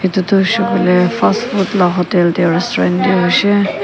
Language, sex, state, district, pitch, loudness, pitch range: Nagamese, female, Nagaland, Kohima, 185 Hz, -13 LUFS, 180-200 Hz